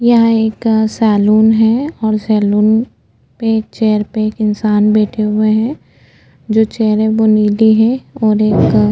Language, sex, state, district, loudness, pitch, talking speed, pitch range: Hindi, female, Uttarakhand, Tehri Garhwal, -12 LUFS, 220 Hz, 155 wpm, 215-225 Hz